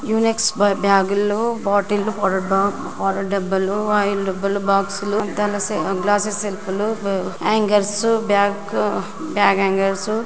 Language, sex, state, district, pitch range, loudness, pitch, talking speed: Telugu, female, Telangana, Karimnagar, 195-210 Hz, -19 LUFS, 205 Hz, 105 wpm